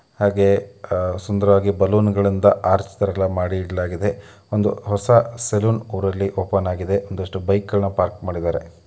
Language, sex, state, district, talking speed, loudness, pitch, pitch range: Kannada, male, Karnataka, Mysore, 115 wpm, -20 LUFS, 100 Hz, 95-100 Hz